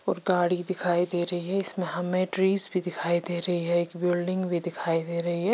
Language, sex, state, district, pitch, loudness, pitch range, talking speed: Hindi, female, Chandigarh, Chandigarh, 175 Hz, -24 LUFS, 175-185 Hz, 225 wpm